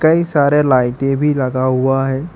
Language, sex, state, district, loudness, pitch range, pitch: Hindi, male, Jharkhand, Ranchi, -15 LUFS, 130-150 Hz, 135 Hz